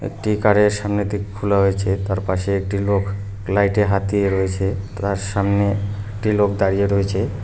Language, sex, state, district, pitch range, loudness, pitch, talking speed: Bengali, male, West Bengal, Cooch Behar, 100-105 Hz, -20 LUFS, 100 Hz, 175 wpm